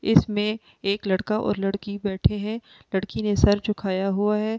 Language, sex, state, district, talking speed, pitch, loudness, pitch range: Hindi, female, Delhi, New Delhi, 185 wpm, 205 Hz, -24 LUFS, 195-210 Hz